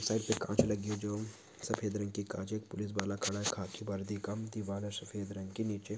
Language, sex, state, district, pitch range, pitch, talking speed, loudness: Hindi, male, Chhattisgarh, Bilaspur, 100-105 Hz, 105 Hz, 240 wpm, -37 LUFS